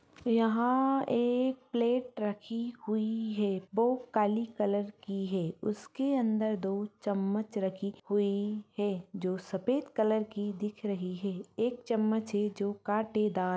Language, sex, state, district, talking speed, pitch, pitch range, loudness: Hindi, female, Bihar, Muzaffarpur, 135 wpm, 210 Hz, 200-230 Hz, -32 LUFS